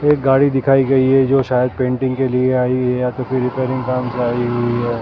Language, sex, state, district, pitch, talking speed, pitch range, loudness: Hindi, male, Maharashtra, Mumbai Suburban, 130 Hz, 250 wpm, 125-135 Hz, -16 LUFS